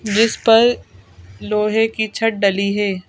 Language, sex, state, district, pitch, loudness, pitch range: Hindi, female, Madhya Pradesh, Bhopal, 210 Hz, -16 LUFS, 175-225 Hz